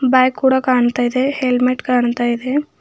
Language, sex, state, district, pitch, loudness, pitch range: Kannada, female, Karnataka, Bidar, 255 Hz, -16 LUFS, 245-260 Hz